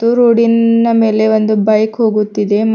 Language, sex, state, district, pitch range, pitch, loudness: Kannada, female, Karnataka, Bidar, 215-230 Hz, 220 Hz, -12 LUFS